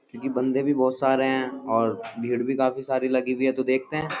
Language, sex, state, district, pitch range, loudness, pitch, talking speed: Hindi, male, Uttar Pradesh, Jyotiba Phule Nagar, 130-135 Hz, -25 LUFS, 130 Hz, 240 wpm